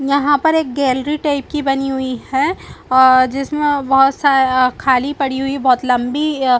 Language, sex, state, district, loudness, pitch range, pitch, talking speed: Hindi, female, Chhattisgarh, Balrampur, -15 LUFS, 260-285 Hz, 270 Hz, 180 wpm